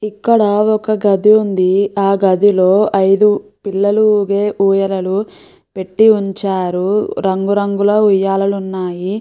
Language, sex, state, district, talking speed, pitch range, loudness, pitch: Telugu, female, Andhra Pradesh, Chittoor, 100 wpm, 195-210 Hz, -14 LUFS, 200 Hz